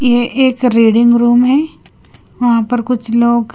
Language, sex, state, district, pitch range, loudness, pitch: Hindi, female, Punjab, Kapurthala, 235-250 Hz, -12 LUFS, 240 Hz